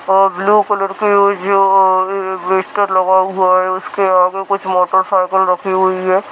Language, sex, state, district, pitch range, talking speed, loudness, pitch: Hindi, male, Rajasthan, Churu, 185-195 Hz, 105 wpm, -13 LUFS, 190 Hz